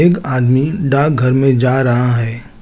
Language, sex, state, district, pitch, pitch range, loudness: Hindi, male, Chandigarh, Chandigarh, 130 Hz, 120-140 Hz, -14 LUFS